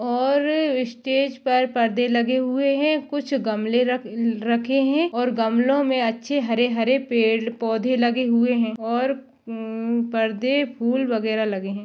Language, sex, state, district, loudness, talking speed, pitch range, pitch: Hindi, female, Maharashtra, Dhule, -22 LUFS, 140 wpm, 230-265 Hz, 245 Hz